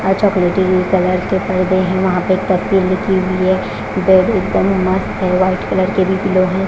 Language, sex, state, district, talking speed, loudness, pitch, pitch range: Hindi, female, Punjab, Fazilka, 205 wpm, -15 LUFS, 185 Hz, 185-190 Hz